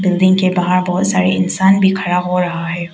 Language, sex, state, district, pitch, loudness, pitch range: Hindi, female, Arunachal Pradesh, Papum Pare, 185 Hz, -14 LUFS, 180-185 Hz